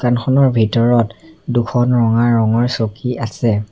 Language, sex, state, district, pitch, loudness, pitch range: Assamese, male, Assam, Sonitpur, 120 Hz, -15 LUFS, 115-125 Hz